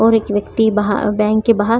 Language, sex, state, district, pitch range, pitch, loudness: Hindi, female, Maharashtra, Chandrapur, 205-225 Hz, 215 Hz, -16 LUFS